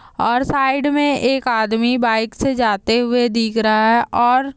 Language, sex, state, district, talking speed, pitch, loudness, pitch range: Hindi, female, Andhra Pradesh, Chittoor, 170 wpm, 240 Hz, -17 LUFS, 225-265 Hz